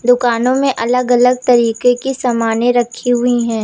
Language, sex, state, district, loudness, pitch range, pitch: Hindi, female, Uttar Pradesh, Lucknow, -14 LUFS, 235-250 Hz, 245 Hz